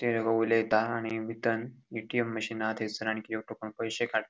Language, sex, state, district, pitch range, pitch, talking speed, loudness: Konkani, male, Goa, North and South Goa, 110-115 Hz, 115 Hz, 195 wpm, -31 LUFS